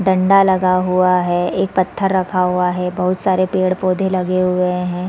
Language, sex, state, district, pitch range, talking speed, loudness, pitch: Hindi, female, Chhattisgarh, Sarguja, 180-185 Hz, 175 wpm, -16 LUFS, 185 Hz